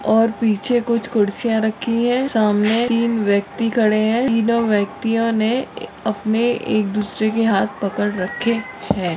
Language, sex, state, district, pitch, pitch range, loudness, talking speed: Hindi, female, Maharashtra, Chandrapur, 225 Hz, 210-235 Hz, -19 LUFS, 145 wpm